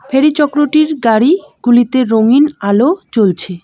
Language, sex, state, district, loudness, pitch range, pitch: Bengali, female, West Bengal, Alipurduar, -12 LUFS, 225-295 Hz, 260 Hz